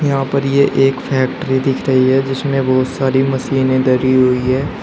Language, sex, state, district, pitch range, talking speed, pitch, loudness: Hindi, male, Uttar Pradesh, Shamli, 130-135 Hz, 185 wpm, 135 Hz, -15 LUFS